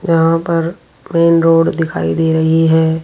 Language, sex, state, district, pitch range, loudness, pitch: Hindi, female, Rajasthan, Jaipur, 160-165 Hz, -13 LUFS, 165 Hz